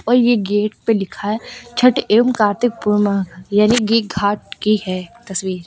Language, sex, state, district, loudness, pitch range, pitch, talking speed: Hindi, female, Uttar Pradesh, Lucknow, -17 LUFS, 200-235 Hz, 210 Hz, 170 wpm